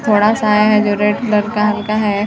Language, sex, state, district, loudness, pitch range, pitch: Hindi, female, Chhattisgarh, Sarguja, -14 LUFS, 210-215 Hz, 210 Hz